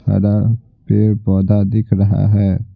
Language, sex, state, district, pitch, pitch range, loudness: Hindi, male, Bihar, Patna, 105 Hz, 100-115 Hz, -15 LUFS